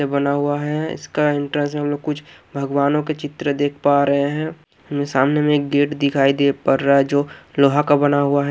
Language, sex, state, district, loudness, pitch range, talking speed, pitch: Hindi, male, Haryana, Jhajjar, -19 LUFS, 140-150 Hz, 220 wpm, 145 Hz